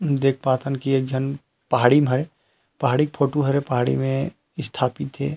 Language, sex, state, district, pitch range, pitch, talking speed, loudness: Chhattisgarhi, male, Chhattisgarh, Rajnandgaon, 130-145 Hz, 135 Hz, 200 wpm, -22 LUFS